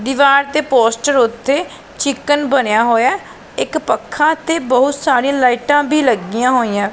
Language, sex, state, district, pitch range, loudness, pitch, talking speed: Punjabi, female, Punjab, Pathankot, 240-290 Hz, -14 LUFS, 270 Hz, 140 wpm